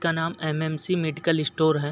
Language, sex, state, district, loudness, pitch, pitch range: Hindi, male, Uttar Pradesh, Muzaffarnagar, -25 LUFS, 160 Hz, 155-165 Hz